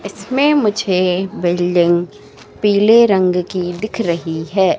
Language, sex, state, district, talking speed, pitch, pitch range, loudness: Hindi, female, Madhya Pradesh, Katni, 115 wpm, 185 Hz, 175-210 Hz, -15 LUFS